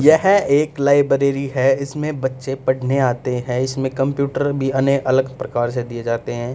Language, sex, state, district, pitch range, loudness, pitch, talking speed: Hindi, male, Haryana, Rohtak, 130-140 Hz, -19 LUFS, 135 Hz, 175 wpm